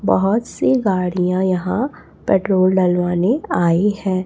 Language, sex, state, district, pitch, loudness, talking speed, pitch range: Hindi, female, Chhattisgarh, Raipur, 185 Hz, -17 LUFS, 115 wpm, 180-200 Hz